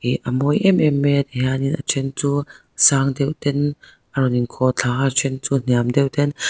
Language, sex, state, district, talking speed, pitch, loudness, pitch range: Mizo, female, Mizoram, Aizawl, 230 wpm, 135 Hz, -19 LUFS, 130-145 Hz